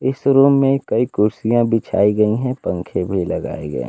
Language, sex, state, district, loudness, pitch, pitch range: Hindi, male, Bihar, Kaimur, -17 LUFS, 120 Hz, 105-135 Hz